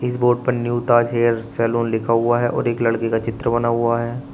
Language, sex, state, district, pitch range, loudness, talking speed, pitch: Hindi, male, Uttar Pradesh, Shamli, 115-120 Hz, -19 LUFS, 235 wpm, 120 Hz